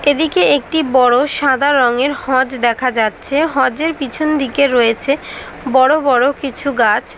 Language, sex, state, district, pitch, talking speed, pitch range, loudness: Bengali, female, West Bengal, Dakshin Dinajpur, 270 Hz, 135 wpm, 250-290 Hz, -14 LUFS